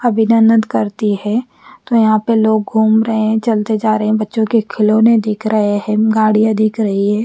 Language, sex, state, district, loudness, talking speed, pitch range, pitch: Hindi, female, Bihar, Patna, -14 LUFS, 200 wpm, 215-225 Hz, 220 Hz